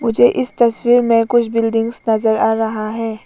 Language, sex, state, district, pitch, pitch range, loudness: Hindi, female, Arunachal Pradesh, Lower Dibang Valley, 230 Hz, 220-235 Hz, -15 LUFS